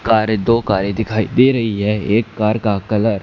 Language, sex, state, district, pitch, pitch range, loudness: Hindi, male, Haryana, Charkhi Dadri, 110 Hz, 105-115 Hz, -16 LUFS